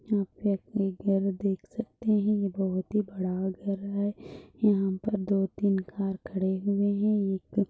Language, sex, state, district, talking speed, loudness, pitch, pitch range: Hindi, female, Chhattisgarh, Bastar, 180 wpm, -29 LUFS, 200 Hz, 190-205 Hz